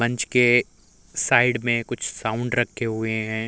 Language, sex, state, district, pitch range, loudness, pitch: Hindi, male, Uttar Pradesh, Muzaffarnagar, 110-120 Hz, -22 LUFS, 120 Hz